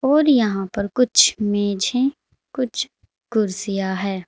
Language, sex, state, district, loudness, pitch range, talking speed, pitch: Hindi, female, Uttar Pradesh, Saharanpur, -20 LUFS, 195-255 Hz, 125 wpm, 210 Hz